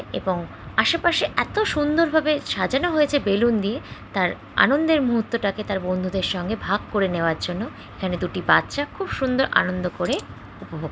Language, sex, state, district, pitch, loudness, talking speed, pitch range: Bengali, female, West Bengal, Jhargram, 225 Hz, -22 LUFS, 155 wpm, 185-295 Hz